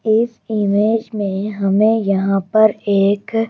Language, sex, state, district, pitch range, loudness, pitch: Hindi, female, Madhya Pradesh, Bhopal, 200-220 Hz, -16 LUFS, 210 Hz